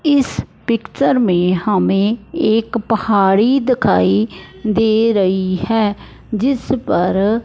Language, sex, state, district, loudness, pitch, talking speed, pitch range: Hindi, male, Punjab, Fazilka, -16 LUFS, 215 Hz, 95 wpm, 190-230 Hz